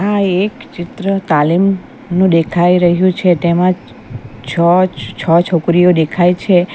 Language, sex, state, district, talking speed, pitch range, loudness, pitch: Gujarati, female, Gujarat, Valsad, 105 wpm, 170-185 Hz, -13 LUFS, 175 Hz